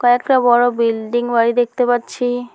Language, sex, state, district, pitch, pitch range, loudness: Bengali, female, West Bengal, Alipurduar, 245 Hz, 240-245 Hz, -16 LUFS